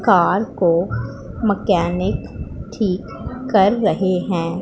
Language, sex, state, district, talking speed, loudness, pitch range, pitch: Hindi, female, Punjab, Pathankot, 90 wpm, -19 LUFS, 170-205 Hz, 185 Hz